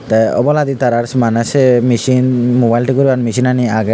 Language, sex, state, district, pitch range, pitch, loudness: Chakma, male, Tripura, Unakoti, 120-130 Hz, 125 Hz, -13 LUFS